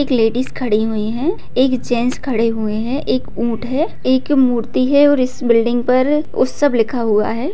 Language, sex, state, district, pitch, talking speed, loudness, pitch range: Hindi, female, Bihar, Bhagalpur, 250 Hz, 190 wpm, -16 LUFS, 230-265 Hz